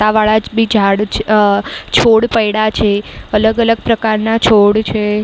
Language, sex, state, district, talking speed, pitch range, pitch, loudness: Gujarati, female, Maharashtra, Mumbai Suburban, 170 wpm, 210-225 Hz, 215 Hz, -12 LUFS